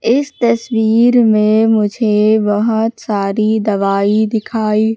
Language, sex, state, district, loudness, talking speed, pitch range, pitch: Hindi, female, Madhya Pradesh, Katni, -13 LUFS, 95 wpm, 210-225 Hz, 220 Hz